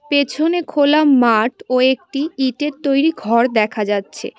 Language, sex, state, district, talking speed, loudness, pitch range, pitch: Bengali, female, West Bengal, Cooch Behar, 135 wpm, -16 LUFS, 235-300 Hz, 275 Hz